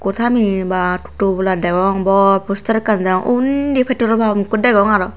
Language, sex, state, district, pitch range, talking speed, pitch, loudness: Chakma, female, Tripura, Unakoti, 190-225 Hz, 160 wpm, 200 Hz, -15 LUFS